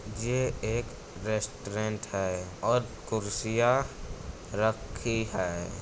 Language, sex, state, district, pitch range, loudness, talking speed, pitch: Hindi, male, Uttar Pradesh, Budaun, 100-115 Hz, -31 LUFS, 80 wpm, 110 Hz